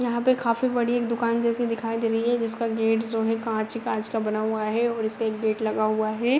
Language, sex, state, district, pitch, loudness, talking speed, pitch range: Hindi, female, Bihar, Madhepura, 225 Hz, -25 LUFS, 270 wpm, 220-235 Hz